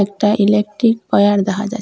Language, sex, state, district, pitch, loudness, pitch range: Bengali, female, Assam, Hailakandi, 210 Hz, -15 LUFS, 200-215 Hz